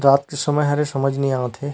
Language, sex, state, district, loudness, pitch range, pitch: Chhattisgarhi, male, Chhattisgarh, Rajnandgaon, -20 LUFS, 135-145 Hz, 140 Hz